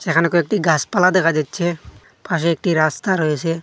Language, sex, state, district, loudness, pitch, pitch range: Bengali, male, Assam, Hailakandi, -18 LUFS, 165 Hz, 160-175 Hz